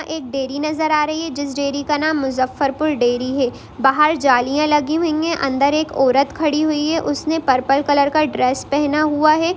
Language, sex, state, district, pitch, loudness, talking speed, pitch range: Hindi, female, Bihar, Sitamarhi, 295 Hz, -18 LUFS, 200 wpm, 275-310 Hz